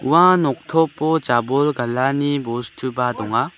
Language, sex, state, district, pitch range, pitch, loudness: Garo, male, Meghalaya, West Garo Hills, 125-160 Hz, 135 Hz, -19 LUFS